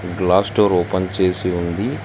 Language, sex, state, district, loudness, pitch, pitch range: Telugu, male, Telangana, Hyderabad, -18 LUFS, 95 Hz, 90-100 Hz